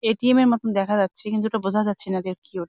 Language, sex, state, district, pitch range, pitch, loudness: Bengali, female, West Bengal, Jalpaiguri, 190-225 Hz, 210 Hz, -22 LUFS